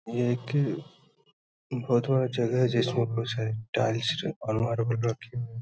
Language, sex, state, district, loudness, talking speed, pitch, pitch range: Hindi, male, Uttar Pradesh, Hamirpur, -28 LUFS, 160 wpm, 120 Hz, 115-130 Hz